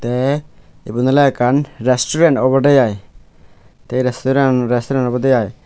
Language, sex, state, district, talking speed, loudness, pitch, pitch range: Chakma, male, Tripura, West Tripura, 125 wpm, -15 LUFS, 130 Hz, 120-135 Hz